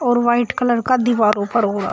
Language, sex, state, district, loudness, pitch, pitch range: Hindi, female, Uttar Pradesh, Shamli, -17 LUFS, 240 Hz, 215-240 Hz